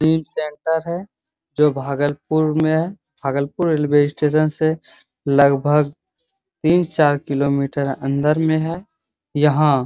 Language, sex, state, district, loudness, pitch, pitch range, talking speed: Hindi, male, Bihar, Bhagalpur, -19 LUFS, 150 Hz, 145-160 Hz, 135 wpm